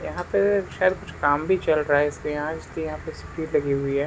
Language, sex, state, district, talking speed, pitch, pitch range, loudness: Hindi, male, Jharkhand, Sahebganj, 220 wpm, 150 Hz, 145-170 Hz, -24 LUFS